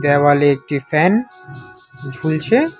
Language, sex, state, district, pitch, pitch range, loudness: Bengali, male, West Bengal, Alipurduar, 145 Hz, 140-185 Hz, -16 LUFS